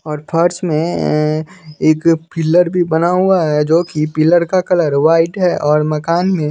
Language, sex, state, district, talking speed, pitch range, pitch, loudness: Hindi, male, Bihar, West Champaran, 185 wpm, 155-175 Hz, 165 Hz, -14 LUFS